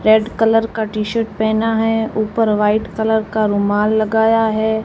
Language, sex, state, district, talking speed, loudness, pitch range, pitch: Hindi, female, Rajasthan, Jaisalmer, 175 wpm, -16 LUFS, 215-225 Hz, 220 Hz